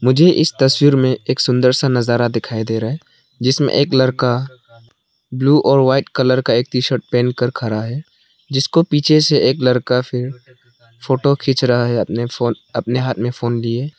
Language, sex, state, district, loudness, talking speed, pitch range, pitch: Hindi, male, Arunachal Pradesh, Lower Dibang Valley, -16 LUFS, 185 wpm, 120-135 Hz, 125 Hz